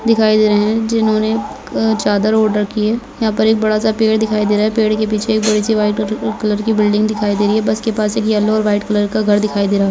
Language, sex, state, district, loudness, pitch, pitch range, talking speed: Hindi, female, Bihar, Begusarai, -15 LUFS, 215 Hz, 210-220 Hz, 230 wpm